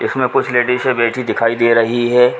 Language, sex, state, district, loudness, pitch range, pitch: Hindi, male, Uttar Pradesh, Ghazipur, -15 LUFS, 115-125 Hz, 125 Hz